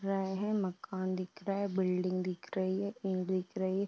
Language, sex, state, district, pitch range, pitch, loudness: Hindi, female, Uttar Pradesh, Deoria, 185-195 Hz, 190 Hz, -35 LUFS